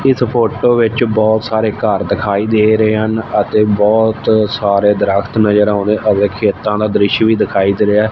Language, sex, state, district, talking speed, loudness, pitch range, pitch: Punjabi, male, Punjab, Fazilka, 185 wpm, -13 LUFS, 105-110 Hz, 110 Hz